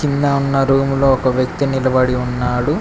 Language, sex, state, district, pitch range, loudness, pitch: Telugu, male, Telangana, Mahabubabad, 130-140 Hz, -16 LUFS, 135 Hz